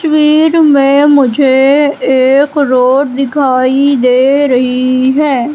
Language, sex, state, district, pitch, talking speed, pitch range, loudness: Hindi, female, Madhya Pradesh, Katni, 275 Hz, 95 wpm, 255-290 Hz, -9 LUFS